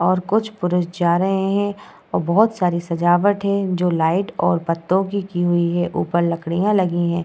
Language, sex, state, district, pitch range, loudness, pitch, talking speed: Hindi, female, Bihar, Vaishali, 170-200 Hz, -19 LUFS, 180 Hz, 180 wpm